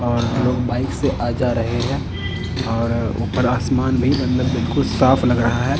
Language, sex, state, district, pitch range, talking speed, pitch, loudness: Hindi, male, Punjab, Kapurthala, 115-130 Hz, 185 wpm, 120 Hz, -19 LUFS